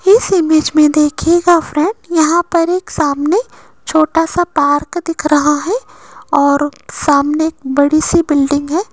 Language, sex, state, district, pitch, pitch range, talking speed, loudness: Hindi, female, Rajasthan, Jaipur, 315 Hz, 295-345 Hz, 135 wpm, -13 LUFS